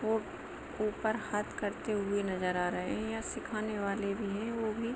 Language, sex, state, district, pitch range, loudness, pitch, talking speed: Hindi, female, Jharkhand, Sahebganj, 200-220 Hz, -35 LUFS, 215 Hz, 170 wpm